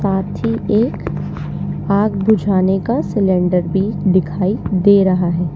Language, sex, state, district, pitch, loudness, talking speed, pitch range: Hindi, female, Uttar Pradesh, Lalitpur, 190 Hz, -16 LUFS, 130 wpm, 185-205 Hz